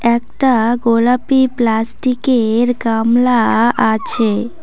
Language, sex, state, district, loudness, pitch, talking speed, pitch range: Bengali, female, West Bengal, Cooch Behar, -14 LUFS, 235 Hz, 80 wpm, 225-250 Hz